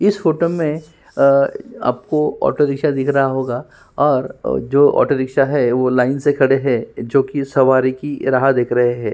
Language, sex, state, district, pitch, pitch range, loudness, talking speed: Hindi, male, Uttarakhand, Tehri Garhwal, 135 Hz, 130-145 Hz, -16 LUFS, 190 wpm